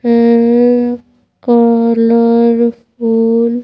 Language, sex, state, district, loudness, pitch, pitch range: Hindi, female, Madhya Pradesh, Bhopal, -11 LUFS, 235 Hz, 230-240 Hz